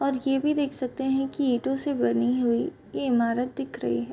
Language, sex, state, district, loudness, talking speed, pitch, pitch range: Hindi, female, Bihar, Bhagalpur, -26 LUFS, 235 wpm, 260 Hz, 235-275 Hz